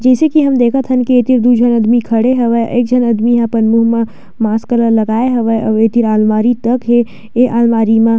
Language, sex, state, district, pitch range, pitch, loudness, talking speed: Chhattisgarhi, female, Chhattisgarh, Sukma, 225-245 Hz, 235 Hz, -12 LUFS, 235 wpm